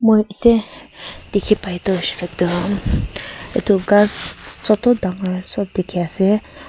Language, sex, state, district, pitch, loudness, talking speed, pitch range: Nagamese, female, Nagaland, Kohima, 200 Hz, -18 LUFS, 125 wpm, 185-215 Hz